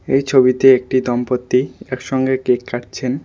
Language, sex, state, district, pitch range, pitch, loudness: Bengali, male, West Bengal, Alipurduar, 125-130 Hz, 130 Hz, -16 LUFS